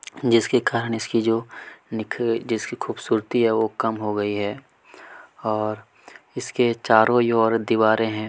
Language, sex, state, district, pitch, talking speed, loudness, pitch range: Hindi, male, Chhattisgarh, Kabirdham, 115 Hz, 145 wpm, -22 LUFS, 110-115 Hz